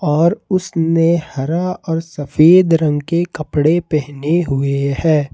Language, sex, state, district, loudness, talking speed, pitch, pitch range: Hindi, male, Jharkhand, Ranchi, -16 LUFS, 125 wpm, 160 Hz, 145-170 Hz